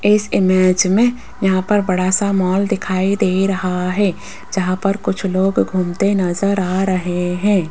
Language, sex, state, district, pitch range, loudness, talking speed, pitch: Hindi, female, Rajasthan, Jaipur, 185-200 Hz, -17 LUFS, 165 wpm, 190 Hz